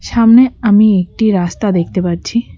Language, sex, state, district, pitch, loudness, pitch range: Bengali, female, West Bengal, Cooch Behar, 210 Hz, -12 LUFS, 180-230 Hz